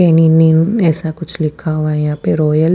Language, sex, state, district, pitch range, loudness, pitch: Hindi, female, Punjab, Fazilka, 155-165 Hz, -13 LUFS, 160 Hz